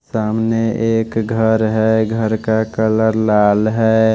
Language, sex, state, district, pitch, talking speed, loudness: Hindi, male, Odisha, Malkangiri, 110 Hz, 130 wpm, -16 LUFS